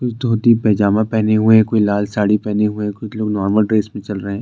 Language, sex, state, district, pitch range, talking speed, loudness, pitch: Hindi, male, Uttarakhand, Tehri Garhwal, 105-110 Hz, 230 wpm, -16 LUFS, 105 Hz